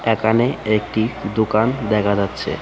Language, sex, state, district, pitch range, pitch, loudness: Bengali, male, Tripura, West Tripura, 105-115 Hz, 110 Hz, -19 LUFS